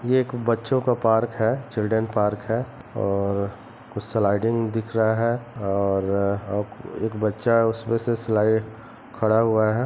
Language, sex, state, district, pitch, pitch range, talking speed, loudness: Hindi, male, Chhattisgarh, Rajnandgaon, 110 Hz, 105-115 Hz, 150 wpm, -23 LUFS